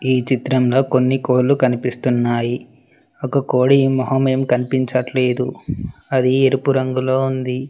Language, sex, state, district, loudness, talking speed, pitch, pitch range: Telugu, male, Telangana, Mahabubabad, -17 LUFS, 110 wpm, 130 Hz, 125-135 Hz